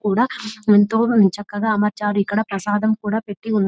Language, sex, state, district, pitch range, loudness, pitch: Telugu, female, Telangana, Nalgonda, 205-220 Hz, -19 LUFS, 210 Hz